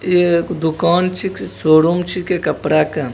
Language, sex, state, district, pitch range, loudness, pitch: Hindi, male, Bihar, Begusarai, 160-180 Hz, -16 LUFS, 170 Hz